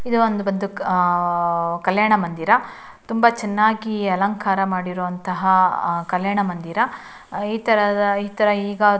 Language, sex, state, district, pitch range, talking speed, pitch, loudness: Kannada, female, Karnataka, Shimoga, 180-210 Hz, 95 wpm, 200 Hz, -20 LUFS